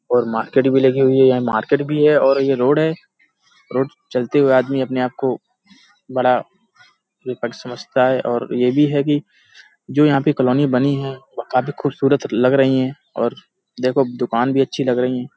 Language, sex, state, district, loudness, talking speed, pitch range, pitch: Hindi, male, Uttar Pradesh, Hamirpur, -18 LUFS, 190 wpm, 125-140 Hz, 130 Hz